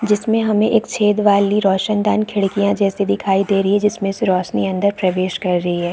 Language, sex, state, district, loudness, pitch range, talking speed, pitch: Hindi, female, Chhattisgarh, Bastar, -17 LUFS, 195-210 Hz, 200 wpm, 200 Hz